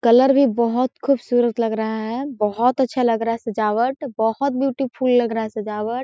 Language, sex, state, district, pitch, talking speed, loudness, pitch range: Hindi, female, Chhattisgarh, Korba, 240 Hz, 190 wpm, -20 LUFS, 225-260 Hz